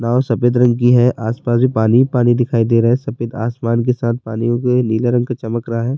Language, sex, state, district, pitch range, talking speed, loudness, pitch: Urdu, male, Bihar, Saharsa, 115-125 Hz, 230 wpm, -15 LUFS, 120 Hz